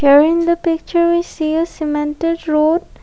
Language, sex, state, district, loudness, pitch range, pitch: English, female, Assam, Kamrup Metropolitan, -16 LUFS, 305-340 Hz, 330 Hz